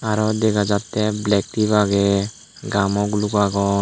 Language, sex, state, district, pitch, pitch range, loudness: Chakma, male, Tripura, Dhalai, 105 Hz, 100-105 Hz, -19 LUFS